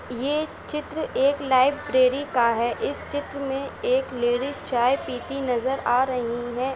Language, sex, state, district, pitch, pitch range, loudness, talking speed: Hindi, female, Uttar Pradesh, Etah, 265 Hz, 245-280 Hz, -24 LUFS, 150 wpm